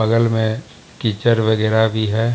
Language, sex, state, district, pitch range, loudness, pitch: Hindi, male, Bihar, Jamui, 110-115 Hz, -18 LUFS, 110 Hz